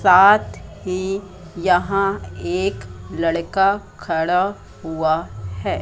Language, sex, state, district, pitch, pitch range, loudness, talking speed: Hindi, female, Madhya Pradesh, Katni, 180 Hz, 120-195 Hz, -20 LUFS, 80 wpm